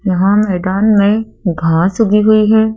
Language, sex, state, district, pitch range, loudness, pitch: Hindi, female, Madhya Pradesh, Dhar, 185-215 Hz, -12 LUFS, 205 Hz